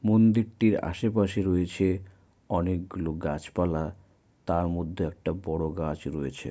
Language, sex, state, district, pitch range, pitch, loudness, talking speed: Bengali, male, West Bengal, Malda, 80-100 Hz, 90 Hz, -28 LUFS, 100 wpm